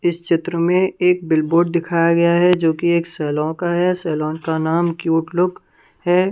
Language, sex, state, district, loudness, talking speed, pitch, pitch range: Hindi, female, Punjab, Kapurthala, -18 LUFS, 200 wpm, 170 Hz, 165-175 Hz